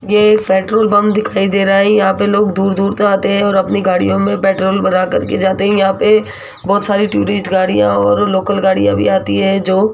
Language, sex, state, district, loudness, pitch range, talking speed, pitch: Hindi, female, Rajasthan, Jaipur, -13 LUFS, 190-205 Hz, 235 wpm, 195 Hz